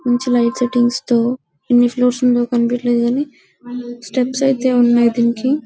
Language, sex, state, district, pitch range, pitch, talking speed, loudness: Telugu, female, Telangana, Karimnagar, 240-250 Hz, 245 Hz, 150 wpm, -16 LUFS